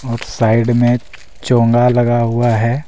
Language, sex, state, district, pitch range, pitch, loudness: Hindi, male, Jharkhand, Deoghar, 115-120 Hz, 120 Hz, -14 LUFS